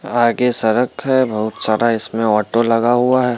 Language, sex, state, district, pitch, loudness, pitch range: Hindi, male, Bihar, Muzaffarpur, 115 Hz, -16 LUFS, 110-125 Hz